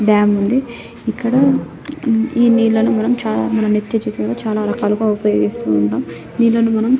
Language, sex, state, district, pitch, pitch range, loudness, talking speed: Telugu, female, Telangana, Nalgonda, 220 Hz, 210-235 Hz, -16 LUFS, 155 wpm